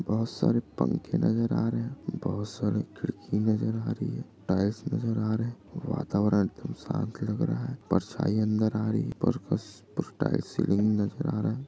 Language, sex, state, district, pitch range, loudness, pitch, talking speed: Hindi, male, Maharashtra, Dhule, 105-115 Hz, -29 LUFS, 110 Hz, 195 wpm